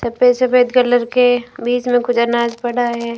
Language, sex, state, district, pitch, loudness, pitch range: Hindi, female, Rajasthan, Bikaner, 245 Hz, -15 LUFS, 235-250 Hz